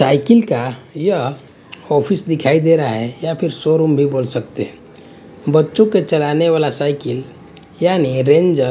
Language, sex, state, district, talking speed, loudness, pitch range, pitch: Hindi, male, Punjab, Fazilka, 150 wpm, -16 LUFS, 135-165 Hz, 150 Hz